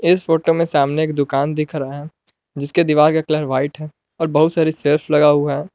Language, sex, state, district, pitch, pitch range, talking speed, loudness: Hindi, male, Jharkhand, Palamu, 150 Hz, 145-160 Hz, 230 wpm, -17 LUFS